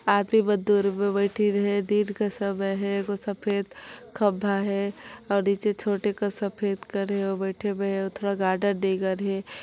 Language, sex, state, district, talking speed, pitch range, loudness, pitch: Chhattisgarhi, female, Chhattisgarh, Sarguja, 170 wpm, 195-205 Hz, -26 LUFS, 200 Hz